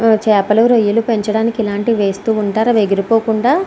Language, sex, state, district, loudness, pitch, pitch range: Telugu, female, Andhra Pradesh, Srikakulam, -14 LUFS, 220 Hz, 210-230 Hz